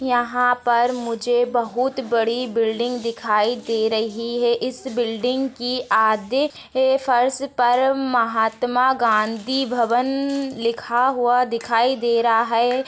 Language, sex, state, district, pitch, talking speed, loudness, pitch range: Hindi, female, Maharashtra, Chandrapur, 245 Hz, 120 wpm, -20 LUFS, 230-255 Hz